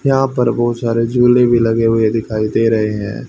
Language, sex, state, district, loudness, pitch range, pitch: Hindi, male, Haryana, Charkhi Dadri, -14 LUFS, 110-120 Hz, 115 Hz